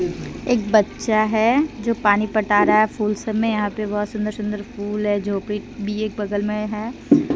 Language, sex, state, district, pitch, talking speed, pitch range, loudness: Hindi, female, Jharkhand, Deoghar, 210 Hz, 190 wpm, 205-220 Hz, -21 LUFS